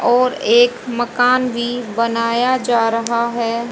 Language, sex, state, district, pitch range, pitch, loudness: Hindi, female, Haryana, Jhajjar, 230-250 Hz, 240 Hz, -16 LUFS